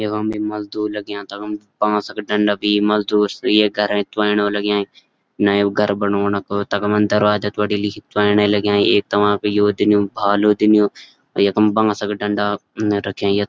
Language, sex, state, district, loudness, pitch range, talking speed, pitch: Garhwali, male, Uttarakhand, Uttarkashi, -18 LUFS, 100-105 Hz, 145 wpm, 105 Hz